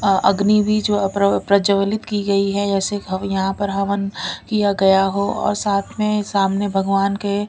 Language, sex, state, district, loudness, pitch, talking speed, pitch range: Hindi, female, Delhi, New Delhi, -18 LUFS, 200 Hz, 160 wpm, 195-205 Hz